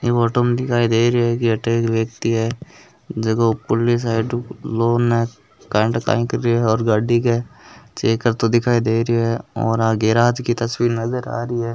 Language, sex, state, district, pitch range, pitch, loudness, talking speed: Hindi, male, Rajasthan, Nagaur, 115-120 Hz, 115 Hz, -19 LUFS, 205 wpm